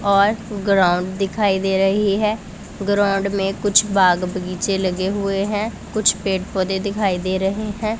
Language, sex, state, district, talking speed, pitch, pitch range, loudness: Hindi, female, Punjab, Pathankot, 150 wpm, 195 Hz, 190-205 Hz, -19 LUFS